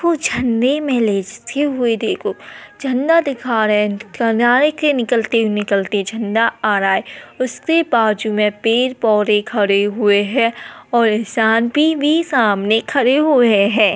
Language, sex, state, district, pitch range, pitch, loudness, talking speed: Hindi, female, Uttar Pradesh, Etah, 210-260 Hz, 230 Hz, -16 LUFS, 140 wpm